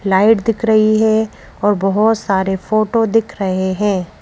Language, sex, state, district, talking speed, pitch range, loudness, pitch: Hindi, female, Madhya Pradesh, Bhopal, 155 wpm, 195-220 Hz, -15 LUFS, 210 Hz